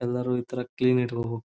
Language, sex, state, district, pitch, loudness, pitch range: Kannada, male, Karnataka, Belgaum, 125 Hz, -27 LUFS, 120-125 Hz